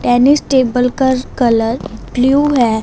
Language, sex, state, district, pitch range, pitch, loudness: Hindi, female, Punjab, Fazilka, 240-265 Hz, 250 Hz, -13 LUFS